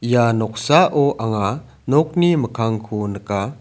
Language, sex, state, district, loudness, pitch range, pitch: Garo, male, Meghalaya, South Garo Hills, -18 LUFS, 110-145 Hz, 120 Hz